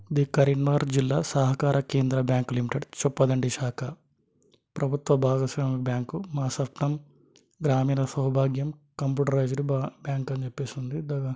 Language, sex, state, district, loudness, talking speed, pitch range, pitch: Telugu, male, Telangana, Karimnagar, -27 LUFS, 115 wpm, 130-145 Hz, 135 Hz